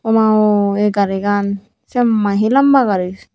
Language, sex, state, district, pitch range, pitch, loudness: Chakma, female, Tripura, Unakoti, 200-225 Hz, 210 Hz, -15 LUFS